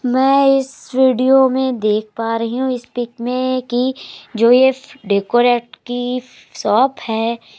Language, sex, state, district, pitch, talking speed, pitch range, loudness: Hindi, female, Uttar Pradesh, Jalaun, 250 Hz, 140 wpm, 230-260 Hz, -16 LUFS